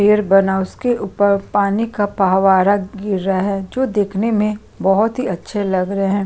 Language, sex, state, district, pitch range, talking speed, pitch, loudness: Hindi, female, Chhattisgarh, Sukma, 195-210 Hz, 180 wpm, 200 Hz, -17 LUFS